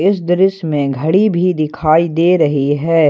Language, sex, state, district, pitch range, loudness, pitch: Hindi, male, Jharkhand, Ranchi, 155-180 Hz, -14 LUFS, 165 Hz